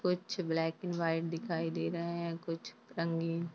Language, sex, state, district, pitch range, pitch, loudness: Hindi, female, Uttarakhand, Tehri Garhwal, 165-175 Hz, 165 Hz, -36 LUFS